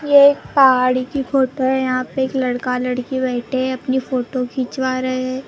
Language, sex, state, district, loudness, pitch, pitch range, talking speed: Hindi, female, Maharashtra, Gondia, -18 LUFS, 260 Hz, 255-265 Hz, 195 wpm